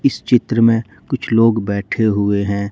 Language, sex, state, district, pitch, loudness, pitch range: Hindi, male, Jharkhand, Ranchi, 115 Hz, -16 LUFS, 100-115 Hz